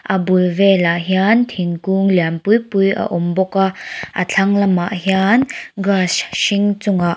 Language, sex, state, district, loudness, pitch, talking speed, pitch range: Mizo, female, Mizoram, Aizawl, -16 LUFS, 190 Hz, 165 wpm, 180-200 Hz